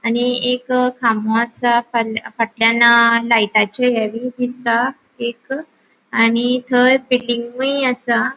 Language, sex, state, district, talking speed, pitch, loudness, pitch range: Konkani, female, Goa, North and South Goa, 105 wpm, 240 Hz, -16 LUFS, 230-250 Hz